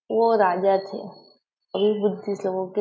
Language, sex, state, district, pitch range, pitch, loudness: Hindi, female, Maharashtra, Nagpur, 190-210 Hz, 200 Hz, -23 LUFS